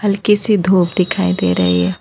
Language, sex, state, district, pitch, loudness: Hindi, female, Jharkhand, Ranchi, 180 Hz, -14 LUFS